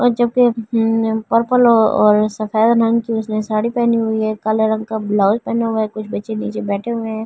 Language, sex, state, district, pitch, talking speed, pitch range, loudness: Hindi, female, Delhi, New Delhi, 220 Hz, 180 wpm, 215-230 Hz, -17 LUFS